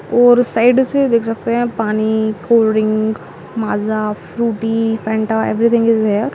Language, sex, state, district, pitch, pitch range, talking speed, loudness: Hindi, female, Maharashtra, Dhule, 225 Hz, 215-235 Hz, 140 wpm, -15 LUFS